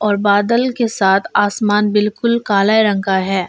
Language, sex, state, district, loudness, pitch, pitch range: Hindi, female, Arunachal Pradesh, Longding, -15 LUFS, 210 Hz, 200-220 Hz